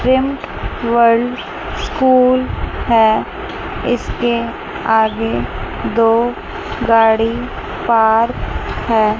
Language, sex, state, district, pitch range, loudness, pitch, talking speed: Hindi, female, Chandigarh, Chandigarh, 225-250 Hz, -16 LUFS, 230 Hz, 60 wpm